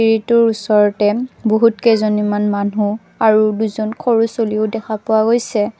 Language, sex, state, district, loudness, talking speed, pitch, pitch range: Assamese, female, Assam, Kamrup Metropolitan, -15 LUFS, 105 wpm, 220 Hz, 210-225 Hz